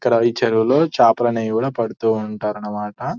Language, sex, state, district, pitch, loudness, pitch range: Telugu, male, Telangana, Nalgonda, 115 Hz, -19 LUFS, 105-120 Hz